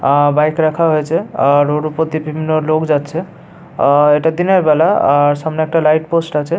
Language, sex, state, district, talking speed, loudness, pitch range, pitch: Bengali, male, West Bengal, Paschim Medinipur, 190 wpm, -14 LUFS, 150-165 Hz, 155 Hz